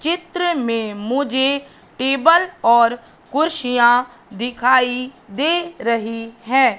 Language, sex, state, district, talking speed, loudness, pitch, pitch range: Hindi, female, Madhya Pradesh, Katni, 90 wpm, -18 LUFS, 255 Hz, 235-290 Hz